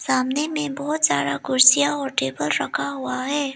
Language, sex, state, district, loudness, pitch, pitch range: Hindi, female, Arunachal Pradesh, Lower Dibang Valley, -20 LUFS, 270 Hz, 255-290 Hz